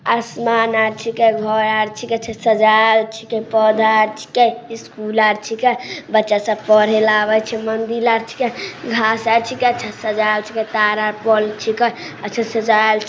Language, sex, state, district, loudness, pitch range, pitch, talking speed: Maithili, female, Bihar, Samastipur, -16 LUFS, 215-230 Hz, 220 Hz, 180 wpm